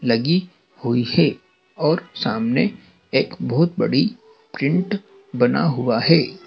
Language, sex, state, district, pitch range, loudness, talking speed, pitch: Hindi, male, Madhya Pradesh, Dhar, 125-205 Hz, -20 LUFS, 110 wpm, 175 Hz